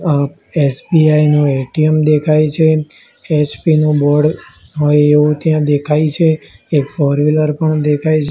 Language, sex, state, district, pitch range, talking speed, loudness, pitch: Gujarati, male, Gujarat, Gandhinagar, 145-155 Hz, 130 wpm, -13 LUFS, 150 Hz